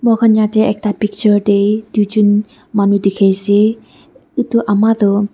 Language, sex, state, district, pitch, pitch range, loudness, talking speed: Nagamese, female, Nagaland, Dimapur, 210 Hz, 205-220 Hz, -13 LUFS, 135 wpm